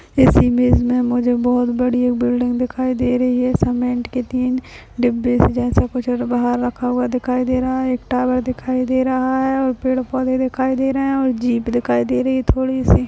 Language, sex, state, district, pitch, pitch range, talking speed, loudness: Hindi, female, Uttar Pradesh, Hamirpur, 250 Hz, 245-255 Hz, 220 wpm, -18 LUFS